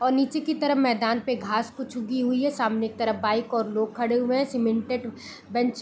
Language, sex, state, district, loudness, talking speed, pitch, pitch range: Hindi, female, Bihar, Purnia, -25 LUFS, 235 wpm, 240 Hz, 225-255 Hz